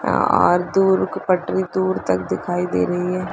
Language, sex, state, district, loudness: Hindi, female, Chhattisgarh, Bastar, -19 LUFS